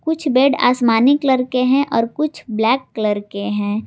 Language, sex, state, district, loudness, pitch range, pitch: Hindi, female, Jharkhand, Garhwa, -17 LUFS, 220-275 Hz, 255 Hz